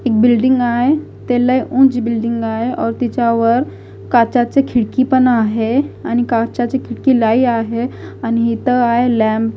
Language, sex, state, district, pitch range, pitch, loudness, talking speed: Marathi, female, Maharashtra, Gondia, 230-250 Hz, 240 Hz, -15 LUFS, 150 wpm